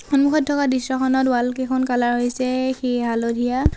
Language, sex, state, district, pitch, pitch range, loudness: Assamese, female, Assam, Sonitpur, 255 Hz, 245-260 Hz, -20 LUFS